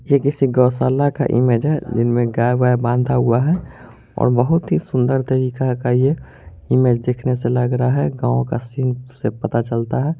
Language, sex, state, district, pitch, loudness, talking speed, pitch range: Hindi, male, Bihar, Muzaffarpur, 125 Hz, -18 LUFS, 195 wpm, 120-130 Hz